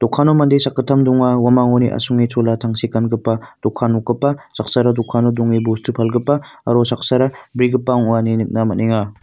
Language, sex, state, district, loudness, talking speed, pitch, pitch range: Garo, male, Meghalaya, North Garo Hills, -16 LUFS, 145 wpm, 120 Hz, 115-130 Hz